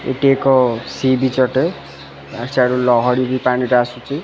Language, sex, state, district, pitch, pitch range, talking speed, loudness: Odia, male, Odisha, Khordha, 125 Hz, 120-130 Hz, 140 wpm, -16 LUFS